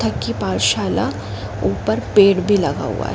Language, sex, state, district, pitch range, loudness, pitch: Hindi, female, Uttar Pradesh, Jalaun, 100-125 Hz, -18 LUFS, 110 Hz